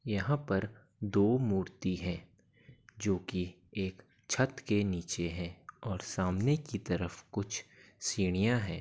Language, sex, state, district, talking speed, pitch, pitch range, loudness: Hindi, male, Uttar Pradesh, Gorakhpur, 135 wpm, 100 Hz, 90-115 Hz, -34 LUFS